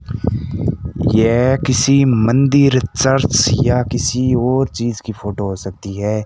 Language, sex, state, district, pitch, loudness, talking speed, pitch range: Hindi, male, Rajasthan, Bikaner, 120 Hz, -16 LUFS, 125 wpm, 110-130 Hz